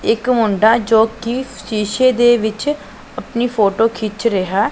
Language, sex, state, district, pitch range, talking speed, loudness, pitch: Punjabi, female, Punjab, Pathankot, 215-245 Hz, 125 wpm, -16 LUFS, 225 Hz